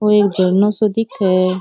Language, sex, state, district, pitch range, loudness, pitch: Rajasthani, male, Rajasthan, Churu, 185-210 Hz, -15 LUFS, 205 Hz